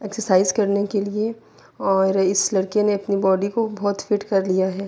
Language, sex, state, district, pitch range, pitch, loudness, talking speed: Urdu, female, Andhra Pradesh, Anantapur, 195-210 Hz, 200 Hz, -21 LUFS, 195 wpm